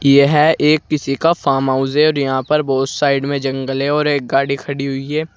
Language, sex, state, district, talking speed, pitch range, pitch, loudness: Hindi, male, Uttar Pradesh, Saharanpur, 235 wpm, 135-150 Hz, 140 Hz, -16 LUFS